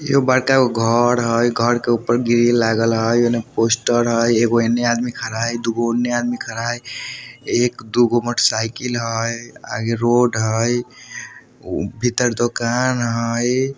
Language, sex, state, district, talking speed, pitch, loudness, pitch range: Bajjika, male, Bihar, Vaishali, 165 wpm, 120 Hz, -18 LUFS, 115-120 Hz